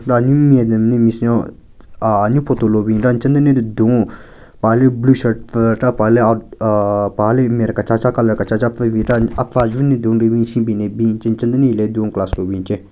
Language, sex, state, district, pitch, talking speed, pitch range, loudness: Rengma, male, Nagaland, Kohima, 115 Hz, 240 wpm, 110-120 Hz, -15 LUFS